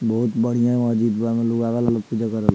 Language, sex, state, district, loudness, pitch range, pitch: Bhojpuri, male, Bihar, Muzaffarpur, -21 LUFS, 115-120 Hz, 115 Hz